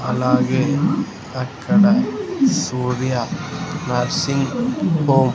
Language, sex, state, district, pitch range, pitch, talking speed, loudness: Telugu, male, Andhra Pradesh, Sri Satya Sai, 130-205 Hz, 140 Hz, 65 wpm, -19 LUFS